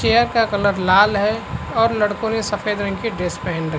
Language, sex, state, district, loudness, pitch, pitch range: Hindi, male, Uttar Pradesh, Varanasi, -19 LUFS, 205 Hz, 195-225 Hz